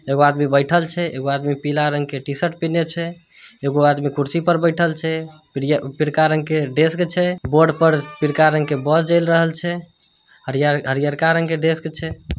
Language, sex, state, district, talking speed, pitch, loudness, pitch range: Hindi, male, Bihar, Samastipur, 190 wpm, 155 Hz, -19 LUFS, 145-165 Hz